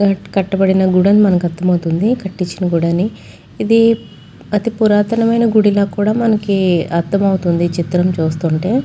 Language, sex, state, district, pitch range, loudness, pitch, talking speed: Telugu, female, Andhra Pradesh, Chittoor, 175-210 Hz, -15 LUFS, 195 Hz, 110 wpm